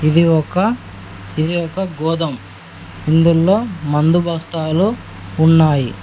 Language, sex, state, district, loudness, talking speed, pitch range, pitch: Telugu, male, Telangana, Mahabubabad, -16 LUFS, 90 wpm, 145-170 Hz, 160 Hz